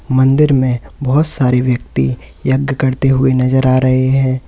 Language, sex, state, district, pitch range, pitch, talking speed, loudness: Hindi, male, Uttar Pradesh, Lalitpur, 125-135 Hz, 130 Hz, 160 wpm, -14 LUFS